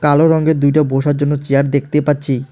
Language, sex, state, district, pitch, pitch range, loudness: Bengali, male, West Bengal, Alipurduar, 145 Hz, 140-150 Hz, -14 LUFS